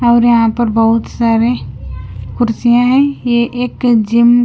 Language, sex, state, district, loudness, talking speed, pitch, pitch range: Hindi, female, Punjab, Kapurthala, -12 LUFS, 150 wpm, 235 Hz, 230-245 Hz